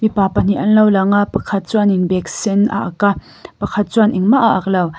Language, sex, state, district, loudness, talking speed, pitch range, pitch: Mizo, female, Mizoram, Aizawl, -15 LUFS, 230 wpm, 190-215 Hz, 200 Hz